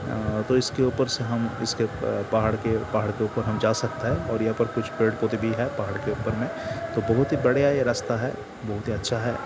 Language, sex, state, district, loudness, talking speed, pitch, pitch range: Hindi, male, Bihar, Sitamarhi, -25 LUFS, 235 wpm, 115 Hz, 110-125 Hz